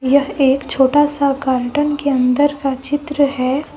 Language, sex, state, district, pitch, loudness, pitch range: Hindi, female, Jharkhand, Deoghar, 275 Hz, -16 LUFS, 265-290 Hz